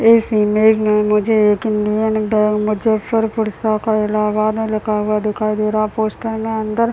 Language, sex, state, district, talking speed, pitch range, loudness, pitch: Hindi, male, Bihar, Muzaffarpur, 180 wpm, 210-220 Hz, -16 LUFS, 215 Hz